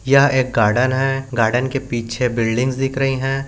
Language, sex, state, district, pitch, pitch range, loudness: Hindi, male, Chhattisgarh, Bilaspur, 130 Hz, 120-135 Hz, -18 LUFS